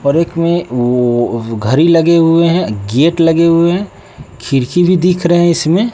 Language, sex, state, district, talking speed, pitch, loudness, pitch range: Hindi, male, Bihar, West Champaran, 180 wpm, 165 Hz, -12 LUFS, 125-170 Hz